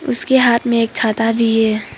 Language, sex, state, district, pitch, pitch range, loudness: Hindi, female, Arunachal Pradesh, Papum Pare, 230 Hz, 225-235 Hz, -15 LUFS